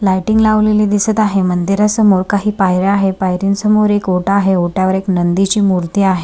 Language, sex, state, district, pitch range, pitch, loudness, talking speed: Marathi, female, Maharashtra, Sindhudurg, 185-210 Hz, 195 Hz, -13 LUFS, 190 wpm